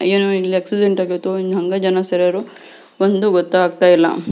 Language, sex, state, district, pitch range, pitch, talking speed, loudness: Kannada, female, Karnataka, Belgaum, 180-195 Hz, 185 Hz, 155 wpm, -16 LUFS